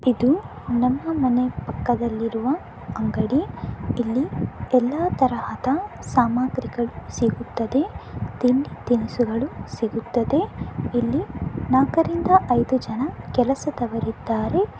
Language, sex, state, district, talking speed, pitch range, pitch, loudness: Kannada, female, Karnataka, Dakshina Kannada, 75 wpm, 240-270 Hz, 250 Hz, -23 LUFS